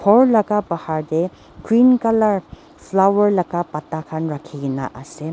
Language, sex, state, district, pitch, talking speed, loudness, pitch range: Nagamese, female, Nagaland, Dimapur, 175 Hz, 145 wpm, -18 LUFS, 155-210 Hz